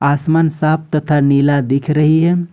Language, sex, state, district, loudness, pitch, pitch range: Hindi, male, Jharkhand, Ranchi, -14 LUFS, 150 Hz, 145-160 Hz